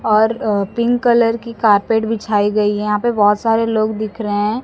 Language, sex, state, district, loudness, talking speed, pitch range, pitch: Hindi, female, Maharashtra, Mumbai Suburban, -16 LUFS, 220 wpm, 210-230 Hz, 215 Hz